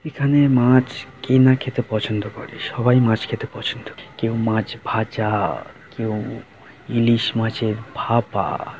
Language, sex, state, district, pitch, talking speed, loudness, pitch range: Bengali, male, West Bengal, Jhargram, 115 Hz, 130 wpm, -20 LUFS, 110-130 Hz